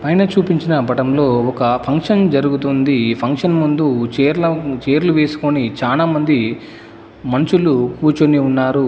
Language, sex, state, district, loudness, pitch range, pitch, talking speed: Telugu, male, Telangana, Mahabubabad, -15 LUFS, 130-155 Hz, 140 Hz, 110 wpm